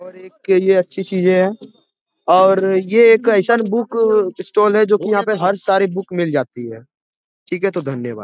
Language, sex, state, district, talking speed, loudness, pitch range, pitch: Hindi, male, Bihar, Jamui, 195 wpm, -15 LUFS, 180-210 Hz, 190 Hz